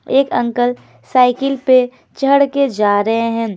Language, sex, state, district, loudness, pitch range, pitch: Hindi, female, Himachal Pradesh, Shimla, -15 LUFS, 230-275 Hz, 250 Hz